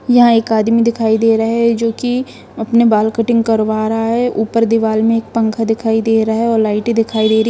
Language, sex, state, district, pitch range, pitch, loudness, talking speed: Hindi, female, Jharkhand, Jamtara, 220-230 Hz, 225 Hz, -14 LUFS, 230 wpm